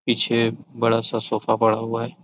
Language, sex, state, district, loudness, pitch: Hindi, male, Chhattisgarh, Raigarh, -22 LUFS, 115 Hz